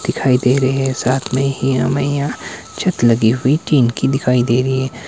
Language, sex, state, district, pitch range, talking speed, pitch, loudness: Hindi, male, Himachal Pradesh, Shimla, 125-135 Hz, 210 wpm, 130 Hz, -16 LUFS